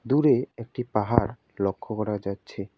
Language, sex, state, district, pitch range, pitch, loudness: Bengali, male, West Bengal, Alipurduar, 100-120 Hz, 105 Hz, -27 LUFS